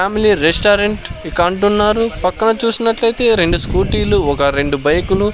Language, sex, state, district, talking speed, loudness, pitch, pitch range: Telugu, male, Andhra Pradesh, Sri Satya Sai, 135 wpm, -14 LUFS, 205 Hz, 175-225 Hz